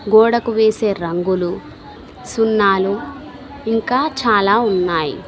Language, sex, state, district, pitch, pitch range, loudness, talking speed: Telugu, female, Telangana, Mahabubabad, 220 Hz, 190-235 Hz, -16 LUFS, 80 wpm